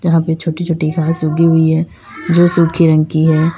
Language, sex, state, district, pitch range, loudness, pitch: Hindi, female, Uttar Pradesh, Lalitpur, 160-165 Hz, -13 LUFS, 160 Hz